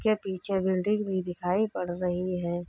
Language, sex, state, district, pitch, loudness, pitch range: Hindi, female, Uttar Pradesh, Budaun, 185 Hz, -29 LUFS, 180-195 Hz